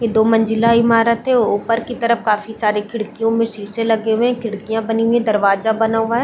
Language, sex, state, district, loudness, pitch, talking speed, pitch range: Hindi, female, Chhattisgarh, Bilaspur, -17 LUFS, 225 Hz, 230 wpm, 220-230 Hz